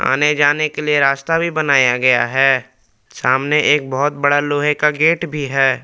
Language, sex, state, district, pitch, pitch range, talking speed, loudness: Hindi, male, Jharkhand, Palamu, 145 Hz, 130-150 Hz, 185 wpm, -15 LUFS